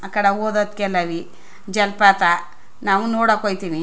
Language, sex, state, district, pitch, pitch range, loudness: Kannada, female, Karnataka, Chamarajanagar, 200 Hz, 180-210 Hz, -19 LUFS